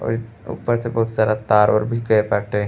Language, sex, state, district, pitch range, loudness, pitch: Bhojpuri, male, Uttar Pradesh, Gorakhpur, 105-115 Hz, -19 LUFS, 110 Hz